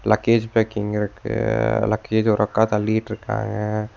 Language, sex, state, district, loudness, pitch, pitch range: Tamil, male, Tamil Nadu, Nilgiris, -21 LUFS, 110 Hz, 105-110 Hz